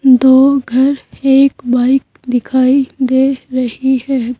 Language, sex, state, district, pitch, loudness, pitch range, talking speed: Hindi, female, Uttar Pradesh, Saharanpur, 260 Hz, -12 LUFS, 255-270 Hz, 110 wpm